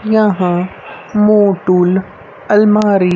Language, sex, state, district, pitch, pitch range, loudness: Hindi, female, Haryana, Rohtak, 200 Hz, 180-210 Hz, -12 LUFS